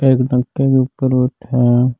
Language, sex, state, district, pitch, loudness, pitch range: Rajasthani, male, Rajasthan, Churu, 130 Hz, -15 LUFS, 125-135 Hz